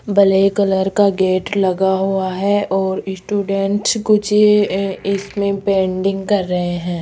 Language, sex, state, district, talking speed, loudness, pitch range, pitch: Hindi, female, Rajasthan, Jaipur, 130 wpm, -16 LUFS, 190-205 Hz, 195 Hz